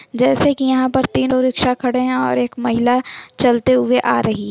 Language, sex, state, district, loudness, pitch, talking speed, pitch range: Hindi, female, Bihar, Jamui, -16 LUFS, 250 Hz, 200 wpm, 240-260 Hz